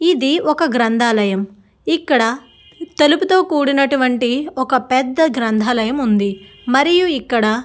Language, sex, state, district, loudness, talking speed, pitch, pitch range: Telugu, female, Andhra Pradesh, Guntur, -16 LUFS, 110 wpm, 260 Hz, 230-310 Hz